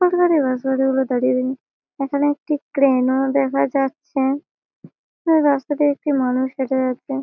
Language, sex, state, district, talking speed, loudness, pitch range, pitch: Bengali, female, West Bengal, Malda, 135 wpm, -19 LUFS, 265-290 Hz, 275 Hz